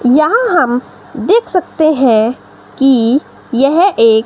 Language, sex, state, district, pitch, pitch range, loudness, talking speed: Hindi, female, Himachal Pradesh, Shimla, 270 Hz, 245-345 Hz, -12 LUFS, 115 wpm